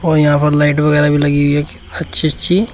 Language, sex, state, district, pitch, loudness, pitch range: Hindi, male, Uttar Pradesh, Shamli, 150 Hz, -13 LUFS, 145-155 Hz